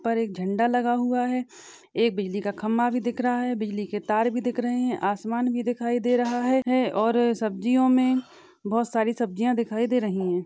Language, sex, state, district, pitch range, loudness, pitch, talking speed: Hindi, female, Maharashtra, Sindhudurg, 220-245 Hz, -25 LUFS, 240 Hz, 205 wpm